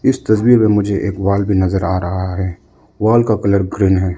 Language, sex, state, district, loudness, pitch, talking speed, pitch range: Hindi, male, Arunachal Pradesh, Lower Dibang Valley, -15 LUFS, 100 Hz, 230 wpm, 95-110 Hz